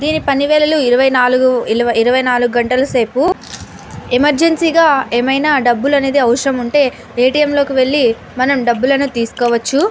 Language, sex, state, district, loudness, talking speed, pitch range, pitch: Telugu, female, Andhra Pradesh, Anantapur, -13 LUFS, 125 wpm, 245-285 Hz, 260 Hz